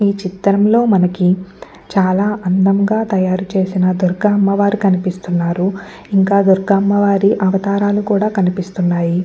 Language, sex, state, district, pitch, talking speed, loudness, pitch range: Telugu, female, Andhra Pradesh, Guntur, 195 Hz, 110 wpm, -15 LUFS, 185-200 Hz